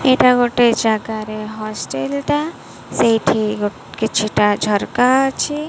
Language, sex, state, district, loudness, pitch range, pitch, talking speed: Odia, female, Odisha, Malkangiri, -17 LUFS, 210-250 Hz, 220 Hz, 95 wpm